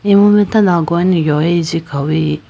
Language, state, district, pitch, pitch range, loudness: Idu Mishmi, Arunachal Pradesh, Lower Dibang Valley, 170 Hz, 155-200 Hz, -13 LUFS